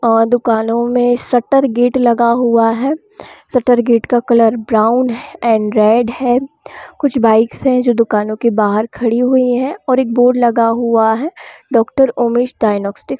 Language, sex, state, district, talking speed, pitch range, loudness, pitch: Hindi, female, Bihar, Sitamarhi, 165 wpm, 225-250 Hz, -13 LUFS, 240 Hz